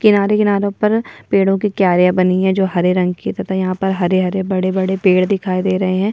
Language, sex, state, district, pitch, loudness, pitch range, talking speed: Hindi, female, Bihar, Kishanganj, 190 Hz, -16 LUFS, 185-200 Hz, 215 wpm